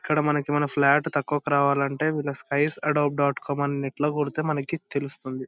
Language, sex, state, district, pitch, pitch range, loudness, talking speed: Telugu, male, Andhra Pradesh, Anantapur, 145 Hz, 140-150 Hz, -25 LUFS, 185 wpm